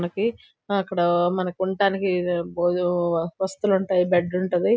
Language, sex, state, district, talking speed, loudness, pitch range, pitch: Telugu, female, Andhra Pradesh, Guntur, 90 wpm, -23 LUFS, 175-195 Hz, 180 Hz